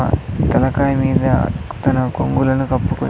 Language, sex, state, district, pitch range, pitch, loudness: Telugu, male, Andhra Pradesh, Sri Satya Sai, 130-135 Hz, 130 Hz, -17 LUFS